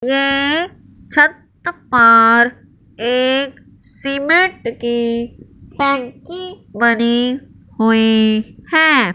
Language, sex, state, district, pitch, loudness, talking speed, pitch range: Hindi, male, Punjab, Fazilka, 250 Hz, -14 LUFS, 65 wpm, 235-280 Hz